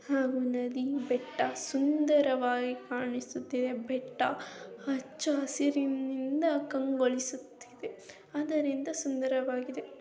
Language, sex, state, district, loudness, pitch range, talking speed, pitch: Kannada, female, Karnataka, Chamarajanagar, -32 LUFS, 255-285 Hz, 65 wpm, 265 Hz